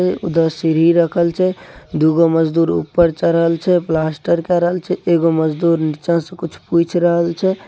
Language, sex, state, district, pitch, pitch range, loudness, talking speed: Maithili, male, Bihar, Samastipur, 170 Hz, 165-175 Hz, -16 LUFS, 185 wpm